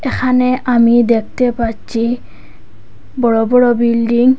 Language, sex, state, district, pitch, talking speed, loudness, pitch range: Bengali, female, Assam, Hailakandi, 235 Hz, 110 wpm, -13 LUFS, 225-250 Hz